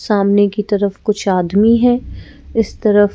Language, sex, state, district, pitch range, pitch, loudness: Hindi, female, Madhya Pradesh, Bhopal, 200-220 Hz, 205 Hz, -15 LUFS